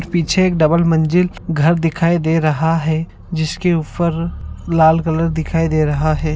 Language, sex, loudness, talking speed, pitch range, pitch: Konkani, male, -16 LUFS, 160 wpm, 160-170 Hz, 165 Hz